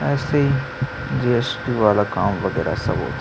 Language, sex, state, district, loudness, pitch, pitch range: Hindi, male, Chhattisgarh, Sukma, -21 LUFS, 130 Hz, 120-135 Hz